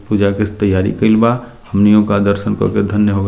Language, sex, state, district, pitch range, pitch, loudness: Bhojpuri, male, Bihar, Muzaffarpur, 100-105 Hz, 105 Hz, -14 LUFS